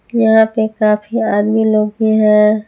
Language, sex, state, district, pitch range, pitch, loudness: Hindi, female, Jharkhand, Palamu, 210-220 Hz, 220 Hz, -13 LUFS